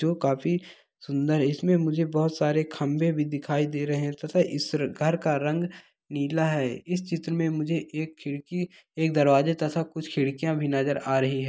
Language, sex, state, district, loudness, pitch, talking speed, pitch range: Hindi, male, Andhra Pradesh, Visakhapatnam, -27 LUFS, 155 Hz, 195 wpm, 145-165 Hz